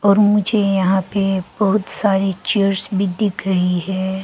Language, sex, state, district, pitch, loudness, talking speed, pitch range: Hindi, female, Arunachal Pradesh, Longding, 195 Hz, -18 LUFS, 155 wpm, 190-205 Hz